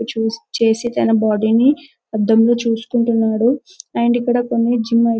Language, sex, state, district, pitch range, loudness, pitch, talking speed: Telugu, male, Telangana, Karimnagar, 225-240 Hz, -17 LUFS, 235 Hz, 160 wpm